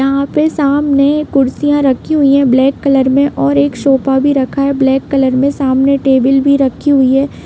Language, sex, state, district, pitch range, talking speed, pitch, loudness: Hindi, female, Bihar, Bhagalpur, 265-280 Hz, 200 wpm, 275 Hz, -11 LUFS